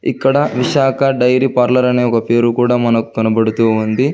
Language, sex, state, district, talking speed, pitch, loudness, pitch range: Telugu, male, Telangana, Hyderabad, 160 wpm, 125 Hz, -14 LUFS, 115-135 Hz